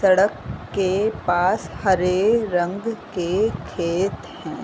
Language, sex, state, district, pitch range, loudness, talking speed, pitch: Hindi, female, Uttar Pradesh, Varanasi, 180-210 Hz, -21 LUFS, 105 wpm, 190 Hz